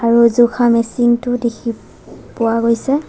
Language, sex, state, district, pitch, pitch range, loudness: Assamese, female, Assam, Sonitpur, 235 Hz, 230-240 Hz, -15 LUFS